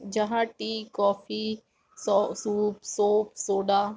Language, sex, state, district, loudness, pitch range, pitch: Hindi, female, Uttar Pradesh, Jalaun, -27 LUFS, 200-220 Hz, 210 Hz